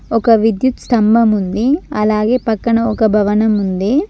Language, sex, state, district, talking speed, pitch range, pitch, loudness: Telugu, female, Telangana, Mahabubabad, 115 wpm, 215-235 Hz, 225 Hz, -14 LUFS